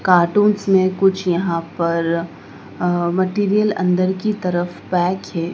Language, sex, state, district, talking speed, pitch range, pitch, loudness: Hindi, female, Madhya Pradesh, Dhar, 130 wpm, 175-195 Hz, 180 Hz, -18 LUFS